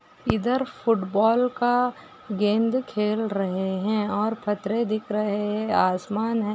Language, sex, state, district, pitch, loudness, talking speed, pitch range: Hindi, female, Goa, North and South Goa, 215 Hz, -24 LUFS, 130 wpm, 205-230 Hz